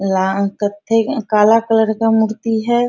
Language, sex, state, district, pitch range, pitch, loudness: Hindi, female, Bihar, Bhagalpur, 205-225 Hz, 220 Hz, -16 LUFS